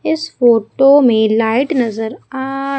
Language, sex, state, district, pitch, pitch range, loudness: Hindi, female, Madhya Pradesh, Umaria, 260 Hz, 225-275 Hz, -14 LUFS